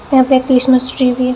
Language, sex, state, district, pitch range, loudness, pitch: Hindi, female, Assam, Hailakandi, 255-260 Hz, -12 LUFS, 255 Hz